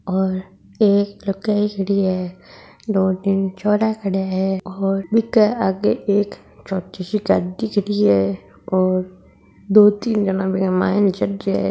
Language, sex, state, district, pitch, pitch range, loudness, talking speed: Hindi, female, Rajasthan, Nagaur, 195 Hz, 185-205 Hz, -19 LUFS, 145 wpm